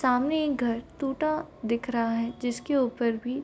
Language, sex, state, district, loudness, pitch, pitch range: Hindi, female, Bihar, Bhagalpur, -28 LUFS, 250 Hz, 235-280 Hz